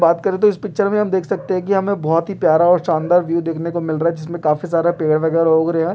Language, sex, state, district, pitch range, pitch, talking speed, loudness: Hindi, male, Uttar Pradesh, Etah, 165-190 Hz, 170 Hz, 310 wpm, -17 LUFS